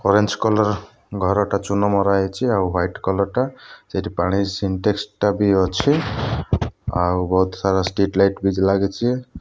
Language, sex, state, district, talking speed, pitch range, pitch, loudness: Odia, male, Odisha, Malkangiri, 145 wpm, 95-105 Hz, 100 Hz, -20 LUFS